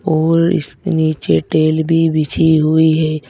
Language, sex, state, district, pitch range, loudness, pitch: Hindi, male, Uttar Pradesh, Saharanpur, 155-165 Hz, -14 LUFS, 160 Hz